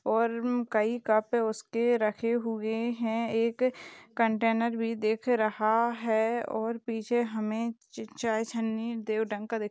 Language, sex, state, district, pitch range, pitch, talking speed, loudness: Hindi, female, Maharashtra, Aurangabad, 220-235 Hz, 230 Hz, 140 wpm, -29 LUFS